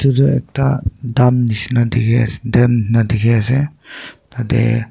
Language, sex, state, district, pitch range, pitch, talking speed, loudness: Nagamese, male, Nagaland, Dimapur, 115-130 Hz, 120 Hz, 110 wpm, -15 LUFS